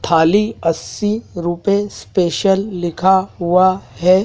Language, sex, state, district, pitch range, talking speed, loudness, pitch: Hindi, male, Madhya Pradesh, Dhar, 175-200 Hz, 100 wpm, -16 LUFS, 185 Hz